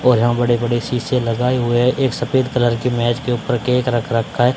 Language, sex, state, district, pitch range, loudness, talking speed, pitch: Hindi, male, Haryana, Charkhi Dadri, 120-125 Hz, -18 LUFS, 235 wpm, 120 Hz